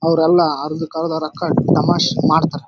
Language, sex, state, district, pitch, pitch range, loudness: Kannada, male, Karnataka, Raichur, 160 Hz, 155-165 Hz, -16 LUFS